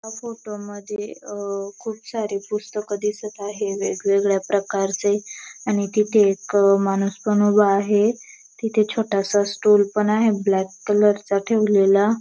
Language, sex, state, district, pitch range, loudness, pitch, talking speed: Marathi, female, Maharashtra, Dhule, 200-210 Hz, -20 LUFS, 205 Hz, 130 wpm